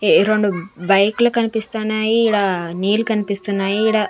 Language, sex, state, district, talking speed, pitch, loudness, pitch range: Telugu, female, Andhra Pradesh, Manyam, 115 wpm, 210 Hz, -17 LUFS, 195-220 Hz